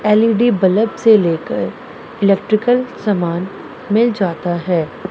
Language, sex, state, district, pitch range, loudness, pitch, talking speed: Hindi, female, Punjab, Pathankot, 180-225 Hz, -16 LUFS, 205 Hz, 105 wpm